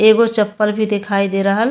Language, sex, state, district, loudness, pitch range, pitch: Bhojpuri, female, Uttar Pradesh, Ghazipur, -16 LUFS, 200-220 Hz, 210 Hz